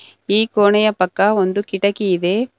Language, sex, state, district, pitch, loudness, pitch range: Kannada, female, Karnataka, Bangalore, 200 Hz, -16 LUFS, 185-210 Hz